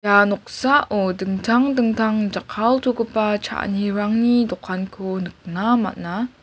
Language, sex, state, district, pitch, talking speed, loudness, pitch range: Garo, female, Meghalaya, West Garo Hills, 210 Hz, 85 wpm, -20 LUFS, 190-240 Hz